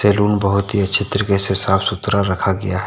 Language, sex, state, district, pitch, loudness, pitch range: Hindi, male, Jharkhand, Deoghar, 100 Hz, -17 LUFS, 95-100 Hz